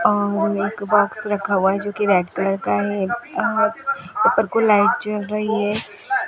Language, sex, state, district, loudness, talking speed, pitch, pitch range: Hindi, female, Rajasthan, Bikaner, -20 LUFS, 170 wpm, 210 Hz, 200-220 Hz